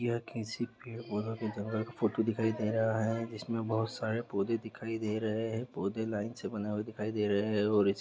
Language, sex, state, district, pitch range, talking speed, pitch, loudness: Hindi, male, Bihar, East Champaran, 105-115 Hz, 230 wpm, 110 Hz, -34 LUFS